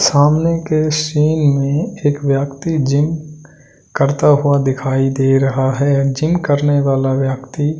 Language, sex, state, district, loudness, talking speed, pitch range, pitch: Hindi, male, Delhi, New Delhi, -15 LUFS, 130 wpm, 135-155 Hz, 145 Hz